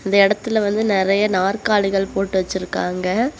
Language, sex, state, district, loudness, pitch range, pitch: Tamil, female, Tamil Nadu, Kanyakumari, -19 LUFS, 190-215 Hz, 200 Hz